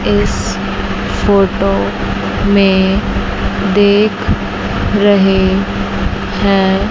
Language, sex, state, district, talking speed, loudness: Hindi, female, Chandigarh, Chandigarh, 50 wpm, -13 LUFS